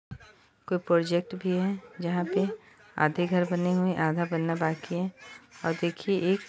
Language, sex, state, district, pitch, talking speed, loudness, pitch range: Hindi, female, Bihar, Saharsa, 175 Hz, 165 wpm, -28 LUFS, 170-190 Hz